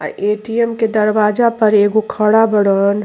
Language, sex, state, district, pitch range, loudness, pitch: Bhojpuri, female, Uttar Pradesh, Ghazipur, 210-225 Hz, -14 LUFS, 215 Hz